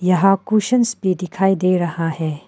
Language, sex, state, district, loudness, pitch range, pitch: Hindi, female, Arunachal Pradesh, Papum Pare, -18 LUFS, 175-195 Hz, 185 Hz